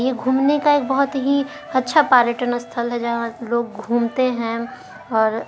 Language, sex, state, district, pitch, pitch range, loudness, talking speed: Hindi, female, Bihar, Jahanabad, 245 Hz, 235-270 Hz, -19 LUFS, 165 wpm